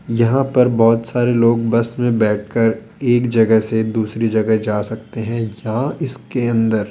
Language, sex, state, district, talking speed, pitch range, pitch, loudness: Hindi, male, Rajasthan, Jaipur, 175 wpm, 110-120 Hz, 115 Hz, -17 LUFS